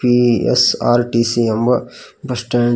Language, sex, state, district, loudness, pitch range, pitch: Kannada, male, Karnataka, Koppal, -15 LUFS, 115-125 Hz, 120 Hz